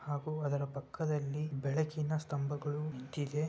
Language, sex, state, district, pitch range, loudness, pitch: Kannada, male, Karnataka, Bellary, 140-155 Hz, -37 LUFS, 145 Hz